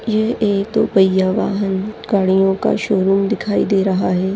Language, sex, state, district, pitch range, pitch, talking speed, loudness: Hindi, female, Maharashtra, Chandrapur, 190-210 Hz, 195 Hz, 165 wpm, -16 LUFS